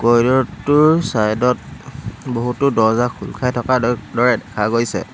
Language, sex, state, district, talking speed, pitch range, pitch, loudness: Assamese, male, Assam, Hailakandi, 130 wpm, 115-130 Hz, 125 Hz, -17 LUFS